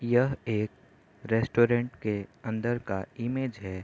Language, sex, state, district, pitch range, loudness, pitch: Hindi, male, Bihar, Gopalganj, 105-120 Hz, -29 LUFS, 115 Hz